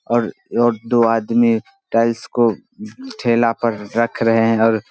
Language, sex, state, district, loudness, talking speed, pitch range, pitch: Hindi, male, Bihar, Vaishali, -17 LUFS, 160 wpm, 115-160 Hz, 115 Hz